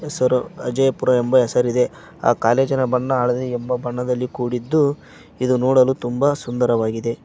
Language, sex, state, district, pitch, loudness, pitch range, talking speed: Kannada, male, Karnataka, Koppal, 125 Hz, -19 LUFS, 125-130 Hz, 115 wpm